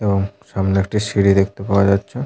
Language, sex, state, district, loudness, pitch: Bengali, male, West Bengal, Malda, -18 LUFS, 100 Hz